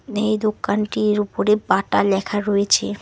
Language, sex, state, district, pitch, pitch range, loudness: Bengali, female, West Bengal, Alipurduar, 210 Hz, 205-215 Hz, -20 LUFS